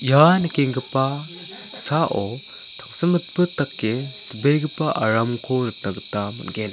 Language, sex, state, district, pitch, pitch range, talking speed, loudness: Garo, male, Meghalaya, South Garo Hills, 135 Hz, 120-165 Hz, 80 wpm, -22 LUFS